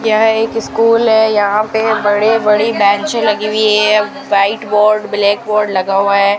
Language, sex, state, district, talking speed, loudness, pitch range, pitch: Hindi, female, Rajasthan, Bikaner, 180 wpm, -12 LUFS, 205-220 Hz, 215 Hz